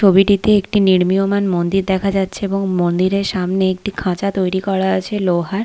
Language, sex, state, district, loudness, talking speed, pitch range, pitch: Bengali, female, West Bengal, Paschim Medinipur, -16 LUFS, 160 wpm, 185-200 Hz, 190 Hz